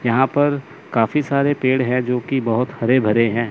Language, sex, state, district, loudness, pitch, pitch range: Hindi, male, Chandigarh, Chandigarh, -18 LUFS, 125 Hz, 115-140 Hz